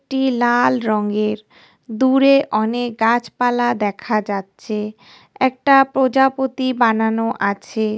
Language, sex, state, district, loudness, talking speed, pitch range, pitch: Bengali, female, West Bengal, North 24 Parganas, -18 LUFS, 100 wpm, 215-260 Hz, 235 Hz